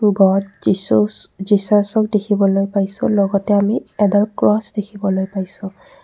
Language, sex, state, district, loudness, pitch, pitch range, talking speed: Assamese, female, Assam, Kamrup Metropolitan, -17 LUFS, 200 Hz, 195-210 Hz, 110 wpm